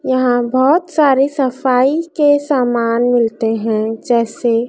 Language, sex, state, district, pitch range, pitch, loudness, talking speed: Hindi, female, Madhya Pradesh, Dhar, 235-280 Hz, 250 Hz, -14 LUFS, 115 wpm